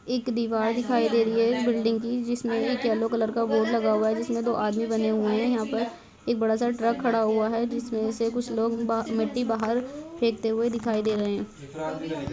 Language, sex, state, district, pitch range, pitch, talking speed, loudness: Hindi, female, Chhattisgarh, Balrampur, 220-235 Hz, 230 Hz, 220 wpm, -26 LUFS